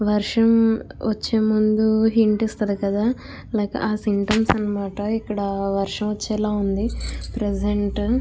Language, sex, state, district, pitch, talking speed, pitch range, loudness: Telugu, female, Andhra Pradesh, Krishna, 210 Hz, 115 wpm, 205-220 Hz, -22 LUFS